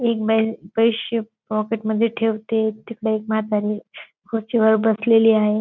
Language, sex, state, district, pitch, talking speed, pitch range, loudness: Marathi, female, Maharashtra, Dhule, 220 Hz, 140 wpm, 215-225 Hz, -20 LUFS